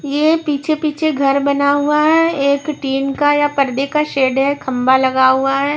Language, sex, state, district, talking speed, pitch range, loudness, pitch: Hindi, female, Maharashtra, Washim, 200 wpm, 270-300 Hz, -15 LUFS, 280 Hz